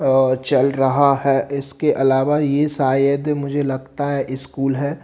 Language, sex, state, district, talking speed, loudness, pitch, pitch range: Hindi, male, Bihar, Katihar, 155 wpm, -18 LUFS, 140 Hz, 135-145 Hz